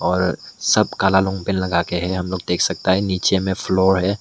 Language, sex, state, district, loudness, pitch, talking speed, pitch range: Hindi, male, Meghalaya, West Garo Hills, -19 LUFS, 95 Hz, 240 wpm, 90-95 Hz